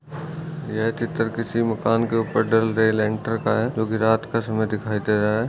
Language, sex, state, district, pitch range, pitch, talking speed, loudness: Hindi, male, Chhattisgarh, Bastar, 110-115 Hz, 115 Hz, 205 wpm, -22 LUFS